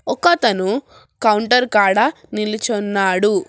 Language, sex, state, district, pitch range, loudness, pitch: Telugu, female, Telangana, Hyderabad, 205-245 Hz, -17 LUFS, 215 Hz